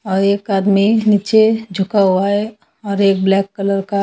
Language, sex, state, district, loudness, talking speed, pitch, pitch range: Hindi, female, Haryana, Charkhi Dadri, -15 LUFS, 180 wpm, 200 Hz, 195-210 Hz